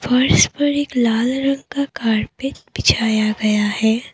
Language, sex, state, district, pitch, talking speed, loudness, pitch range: Hindi, female, Assam, Kamrup Metropolitan, 245 Hz, 160 wpm, -18 LUFS, 220-275 Hz